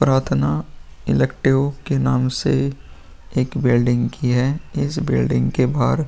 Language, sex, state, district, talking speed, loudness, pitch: Hindi, male, Bihar, Vaishali, 140 wpm, -19 LUFS, 120 Hz